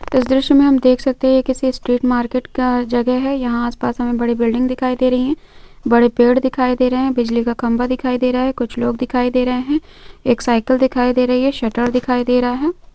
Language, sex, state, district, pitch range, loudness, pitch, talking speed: Hindi, female, West Bengal, North 24 Parganas, 245-260 Hz, -16 LUFS, 250 Hz, 240 wpm